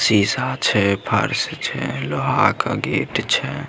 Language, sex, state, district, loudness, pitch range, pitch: Maithili, male, Bihar, Samastipur, -20 LUFS, 70-105 Hz, 100 Hz